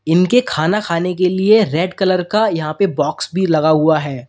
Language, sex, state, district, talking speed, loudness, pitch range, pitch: Hindi, male, Uttar Pradesh, Lalitpur, 210 wpm, -15 LUFS, 155-190 Hz, 175 Hz